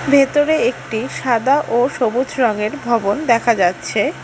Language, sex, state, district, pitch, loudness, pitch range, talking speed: Bengali, female, West Bengal, Alipurduar, 245 Hz, -17 LUFS, 230-275 Hz, 125 wpm